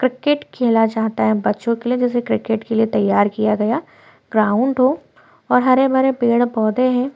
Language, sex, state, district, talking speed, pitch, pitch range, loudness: Hindi, female, Chhattisgarh, Korba, 185 wpm, 235 Hz, 220-255 Hz, -17 LUFS